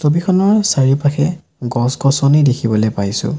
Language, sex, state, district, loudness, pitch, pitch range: Assamese, male, Assam, Sonitpur, -14 LUFS, 140 Hz, 120-160 Hz